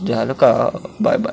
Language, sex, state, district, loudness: Marathi, male, Maharashtra, Pune, -17 LUFS